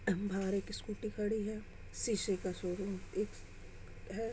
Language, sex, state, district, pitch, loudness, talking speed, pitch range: Hindi, female, Uttar Pradesh, Muzaffarnagar, 195 Hz, -39 LUFS, 140 wpm, 185-215 Hz